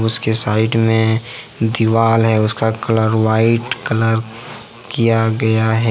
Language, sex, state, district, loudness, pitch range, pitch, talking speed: Hindi, male, Jharkhand, Ranchi, -16 LUFS, 110-115 Hz, 110 Hz, 120 wpm